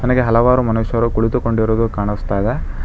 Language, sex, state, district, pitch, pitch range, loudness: Kannada, male, Karnataka, Bangalore, 115 Hz, 110-120 Hz, -17 LUFS